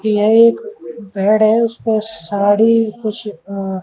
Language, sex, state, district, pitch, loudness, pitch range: Hindi, male, Haryana, Jhajjar, 215 Hz, -15 LUFS, 200-225 Hz